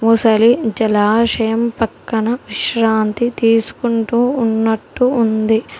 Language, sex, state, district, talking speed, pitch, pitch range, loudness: Telugu, female, Telangana, Hyderabad, 70 wpm, 225 Hz, 220-235 Hz, -15 LUFS